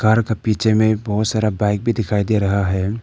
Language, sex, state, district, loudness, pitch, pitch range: Hindi, male, Arunachal Pradesh, Papum Pare, -18 LUFS, 110 Hz, 105-110 Hz